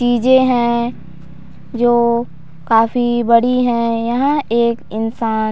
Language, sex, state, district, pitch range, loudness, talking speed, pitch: Hindi, female, Chhattisgarh, Raigarh, 225-240 Hz, -15 LUFS, 110 wpm, 235 Hz